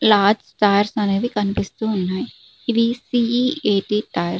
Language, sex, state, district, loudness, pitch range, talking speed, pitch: Telugu, female, Andhra Pradesh, Srikakulam, -20 LUFS, 200-235 Hz, 165 wpm, 210 Hz